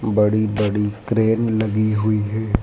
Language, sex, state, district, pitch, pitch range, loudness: Hindi, male, Madhya Pradesh, Dhar, 110 Hz, 105-110 Hz, -19 LUFS